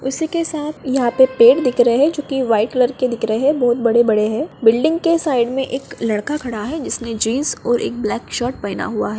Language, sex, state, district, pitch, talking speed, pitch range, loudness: Hindi, female, Bihar, Madhepura, 255 Hz, 240 wpm, 235-295 Hz, -17 LUFS